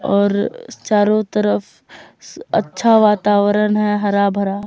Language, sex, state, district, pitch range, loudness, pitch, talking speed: Hindi, female, Jharkhand, Deoghar, 200-210 Hz, -16 LUFS, 205 Hz, 105 wpm